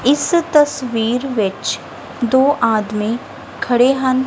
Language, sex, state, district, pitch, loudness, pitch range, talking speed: Punjabi, female, Punjab, Kapurthala, 255 Hz, -16 LUFS, 225-275 Hz, 100 wpm